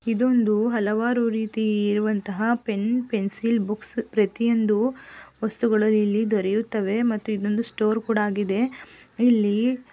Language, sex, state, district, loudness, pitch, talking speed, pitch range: Kannada, female, Karnataka, Gulbarga, -23 LUFS, 220 Hz, 105 wpm, 210-230 Hz